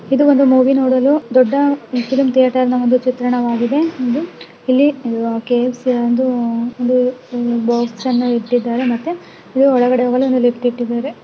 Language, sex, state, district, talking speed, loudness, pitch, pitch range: Kannada, female, Karnataka, Belgaum, 140 wpm, -15 LUFS, 250 Hz, 240-265 Hz